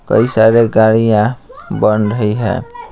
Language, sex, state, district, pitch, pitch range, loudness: Hindi, male, Bihar, Patna, 110 Hz, 105-115 Hz, -13 LUFS